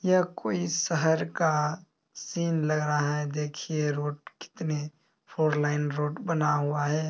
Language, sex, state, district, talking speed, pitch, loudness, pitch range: Maithili, male, Bihar, Samastipur, 145 wpm, 150 Hz, -28 LUFS, 150-165 Hz